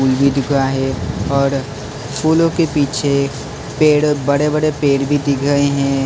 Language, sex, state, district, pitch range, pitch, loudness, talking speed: Hindi, male, Maharashtra, Mumbai Suburban, 135-145 Hz, 140 Hz, -16 LUFS, 170 wpm